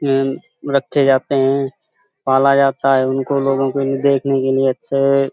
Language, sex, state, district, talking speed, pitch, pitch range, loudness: Hindi, male, Uttar Pradesh, Hamirpur, 170 wpm, 135 Hz, 135-140 Hz, -16 LUFS